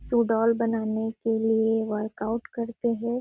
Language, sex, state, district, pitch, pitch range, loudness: Hindi, female, Chhattisgarh, Sarguja, 225 Hz, 220-235 Hz, -26 LUFS